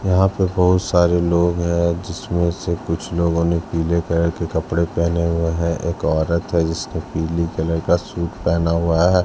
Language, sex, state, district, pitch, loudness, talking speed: Hindi, male, Bihar, Patna, 85 Hz, -19 LUFS, 190 wpm